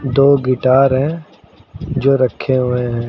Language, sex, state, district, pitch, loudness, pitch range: Hindi, male, Uttar Pradesh, Lucknow, 130 Hz, -15 LUFS, 125-140 Hz